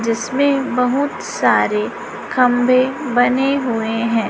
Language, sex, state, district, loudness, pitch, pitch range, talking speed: Hindi, female, Chhattisgarh, Raipur, -17 LUFS, 250 Hz, 230-265 Hz, 95 wpm